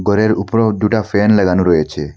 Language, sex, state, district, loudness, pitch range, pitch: Bengali, male, Assam, Hailakandi, -14 LUFS, 90-110 Hz, 100 Hz